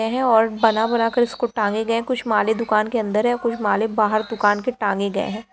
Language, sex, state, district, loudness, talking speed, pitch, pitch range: Hindi, female, Bihar, Jamui, -20 LUFS, 250 wpm, 225 Hz, 210-235 Hz